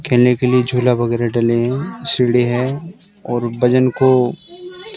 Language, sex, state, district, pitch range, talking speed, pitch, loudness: Hindi, male, Madhya Pradesh, Bhopal, 120-140 Hz, 145 wpm, 125 Hz, -16 LUFS